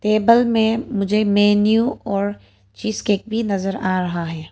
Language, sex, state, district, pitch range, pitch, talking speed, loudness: Hindi, female, Arunachal Pradesh, Papum Pare, 195-220 Hz, 205 Hz, 160 wpm, -19 LUFS